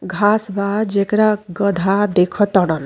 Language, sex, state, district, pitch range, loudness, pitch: Bhojpuri, female, Uttar Pradesh, Deoria, 190-205 Hz, -17 LUFS, 200 Hz